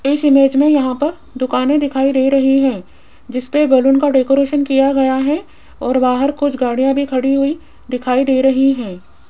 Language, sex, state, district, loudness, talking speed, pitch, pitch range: Hindi, female, Rajasthan, Jaipur, -14 LUFS, 180 wpm, 270 Hz, 255-280 Hz